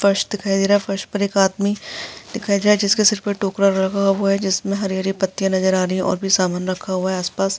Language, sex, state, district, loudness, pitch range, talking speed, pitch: Hindi, female, Uttar Pradesh, Jyotiba Phule Nagar, -19 LUFS, 190-200 Hz, 270 wpm, 195 Hz